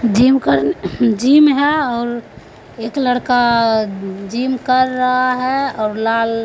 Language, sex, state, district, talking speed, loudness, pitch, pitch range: Hindi, female, Bihar, Begusarai, 130 wpm, -15 LUFS, 245 Hz, 225-255 Hz